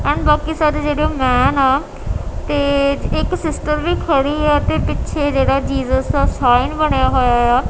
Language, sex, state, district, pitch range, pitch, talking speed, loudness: Punjabi, female, Punjab, Kapurthala, 265-300 Hz, 285 Hz, 165 wpm, -16 LUFS